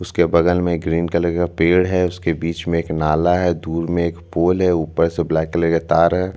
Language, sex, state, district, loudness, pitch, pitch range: Hindi, male, Chhattisgarh, Bastar, -18 LUFS, 85 Hz, 85-90 Hz